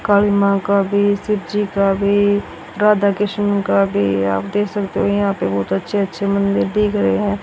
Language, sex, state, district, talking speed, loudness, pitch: Hindi, female, Haryana, Rohtak, 195 wpm, -17 LUFS, 200 Hz